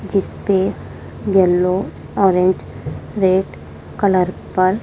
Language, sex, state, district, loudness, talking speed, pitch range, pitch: Hindi, female, Madhya Pradesh, Dhar, -17 LUFS, 85 wpm, 185-195 Hz, 190 Hz